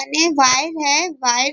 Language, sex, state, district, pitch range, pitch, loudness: Hindi, female, Maharashtra, Nagpur, 260-315 Hz, 280 Hz, -16 LUFS